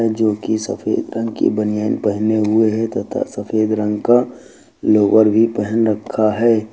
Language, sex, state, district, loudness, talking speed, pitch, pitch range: Hindi, male, Uttar Pradesh, Lucknow, -17 LUFS, 160 wpm, 110 Hz, 105-110 Hz